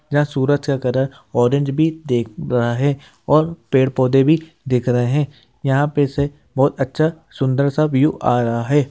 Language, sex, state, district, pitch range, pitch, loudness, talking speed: Hindi, male, Bihar, Gaya, 130-150 Hz, 140 Hz, -18 LUFS, 180 wpm